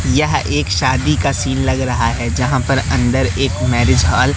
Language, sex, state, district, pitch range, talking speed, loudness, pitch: Hindi, male, Madhya Pradesh, Katni, 75-125 Hz, 205 wpm, -15 LUFS, 95 Hz